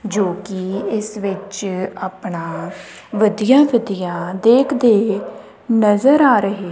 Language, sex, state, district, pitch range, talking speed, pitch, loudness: Punjabi, female, Punjab, Kapurthala, 190-225 Hz, 100 wpm, 205 Hz, -17 LUFS